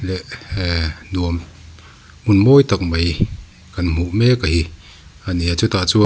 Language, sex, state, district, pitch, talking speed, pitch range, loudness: Mizo, male, Mizoram, Aizawl, 85 Hz, 170 wpm, 85-95 Hz, -18 LUFS